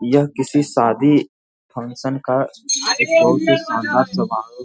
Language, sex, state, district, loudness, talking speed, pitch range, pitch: Hindi, male, Bihar, Jamui, -17 LUFS, 140 wpm, 125-145 Hz, 135 Hz